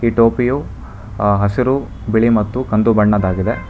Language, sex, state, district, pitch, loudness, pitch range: Kannada, male, Karnataka, Bangalore, 110 Hz, -16 LUFS, 100-115 Hz